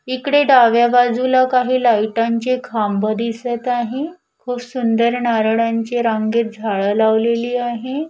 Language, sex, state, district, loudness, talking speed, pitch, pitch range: Marathi, female, Maharashtra, Washim, -17 LUFS, 110 wpm, 240 Hz, 230-255 Hz